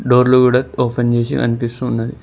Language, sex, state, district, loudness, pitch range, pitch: Telugu, male, Telangana, Mahabubabad, -15 LUFS, 120-125 Hz, 125 Hz